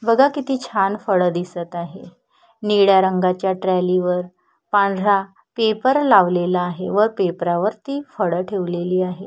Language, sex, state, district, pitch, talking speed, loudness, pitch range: Marathi, female, Maharashtra, Solapur, 190 Hz, 115 wpm, -19 LUFS, 180-215 Hz